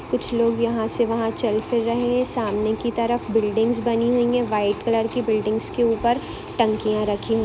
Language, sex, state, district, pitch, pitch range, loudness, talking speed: Hindi, female, Bihar, Saran, 230 Hz, 220-235 Hz, -22 LUFS, 210 wpm